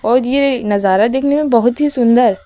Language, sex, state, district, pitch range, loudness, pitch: Hindi, female, Uttar Pradesh, Lucknow, 230-275 Hz, -13 LUFS, 245 Hz